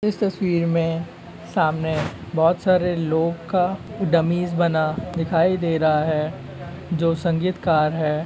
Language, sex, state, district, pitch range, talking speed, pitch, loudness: Hindi, male, Bihar, Begusarai, 155-180 Hz, 125 wpm, 165 Hz, -21 LUFS